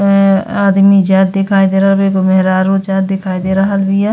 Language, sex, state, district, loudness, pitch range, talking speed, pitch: Bhojpuri, female, Uttar Pradesh, Gorakhpur, -11 LUFS, 190-195 Hz, 205 wpm, 195 Hz